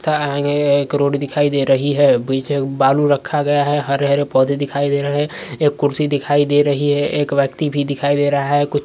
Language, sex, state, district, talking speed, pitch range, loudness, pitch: Hindi, male, Uttar Pradesh, Varanasi, 225 wpm, 140-145 Hz, -17 LUFS, 145 Hz